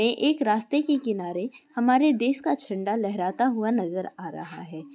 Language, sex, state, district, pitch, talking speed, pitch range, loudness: Hindi, female, Bihar, Sitamarhi, 230 Hz, 170 wpm, 195-275 Hz, -25 LUFS